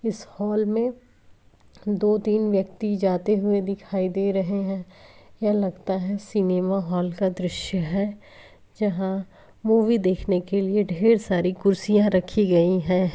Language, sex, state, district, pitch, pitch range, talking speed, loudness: Hindi, female, Bihar, Vaishali, 195 Hz, 185-210 Hz, 135 wpm, -23 LUFS